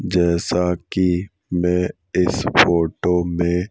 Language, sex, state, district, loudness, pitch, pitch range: Hindi, male, Madhya Pradesh, Bhopal, -19 LUFS, 90 Hz, 85-90 Hz